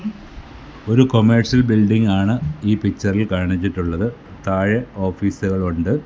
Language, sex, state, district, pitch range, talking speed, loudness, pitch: Malayalam, male, Kerala, Kasaragod, 95-115 Hz, 100 wpm, -18 LUFS, 105 Hz